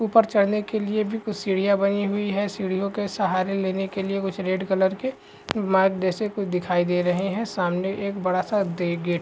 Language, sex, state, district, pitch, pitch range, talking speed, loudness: Hindi, male, Uttarakhand, Uttarkashi, 195 Hz, 185-205 Hz, 210 wpm, -24 LUFS